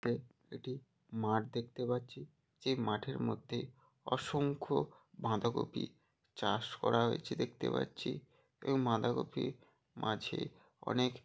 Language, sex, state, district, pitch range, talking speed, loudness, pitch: Bengali, male, West Bengal, Jalpaiguri, 115-135 Hz, 95 wpm, -38 LUFS, 125 Hz